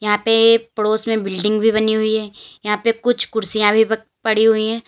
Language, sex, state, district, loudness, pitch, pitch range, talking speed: Hindi, female, Uttar Pradesh, Lalitpur, -17 LUFS, 220 Hz, 215-225 Hz, 220 wpm